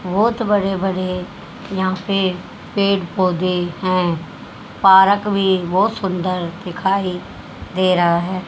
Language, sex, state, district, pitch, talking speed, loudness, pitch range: Hindi, female, Haryana, Jhajjar, 185 Hz, 115 wpm, -18 LUFS, 180-195 Hz